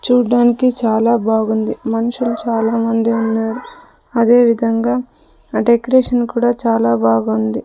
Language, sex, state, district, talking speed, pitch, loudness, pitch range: Telugu, female, Andhra Pradesh, Sri Satya Sai, 100 wpm, 230 Hz, -15 LUFS, 225-240 Hz